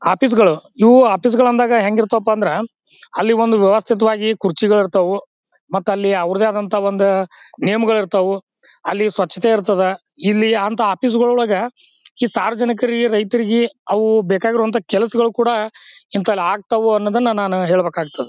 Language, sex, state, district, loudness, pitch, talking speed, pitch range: Kannada, male, Karnataka, Bijapur, -16 LUFS, 220 Hz, 130 wpm, 200-235 Hz